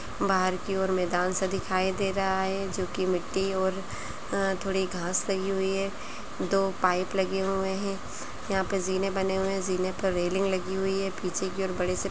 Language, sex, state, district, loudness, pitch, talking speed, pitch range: Kumaoni, female, Uttarakhand, Uttarkashi, -28 LUFS, 190 Hz, 200 wpm, 185-195 Hz